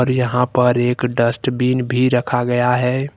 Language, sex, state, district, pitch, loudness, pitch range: Hindi, male, Jharkhand, Deoghar, 125 Hz, -17 LUFS, 120-125 Hz